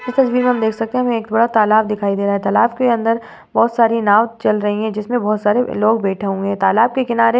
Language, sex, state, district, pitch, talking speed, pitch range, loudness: Hindi, female, Uttar Pradesh, Varanasi, 225 Hz, 285 wpm, 210-235 Hz, -16 LUFS